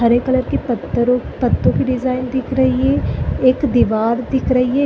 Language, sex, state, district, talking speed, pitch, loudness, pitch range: Hindi, female, Chhattisgarh, Bastar, 185 wpm, 255 Hz, -17 LUFS, 250-260 Hz